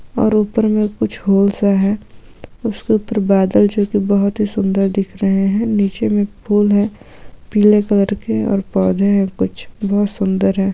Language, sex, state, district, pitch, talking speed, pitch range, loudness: Hindi, female, Goa, North and South Goa, 205 Hz, 180 wpm, 195-210 Hz, -16 LUFS